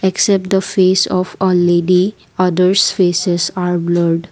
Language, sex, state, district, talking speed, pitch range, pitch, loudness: English, female, Assam, Kamrup Metropolitan, 140 wpm, 175-190 Hz, 185 Hz, -14 LUFS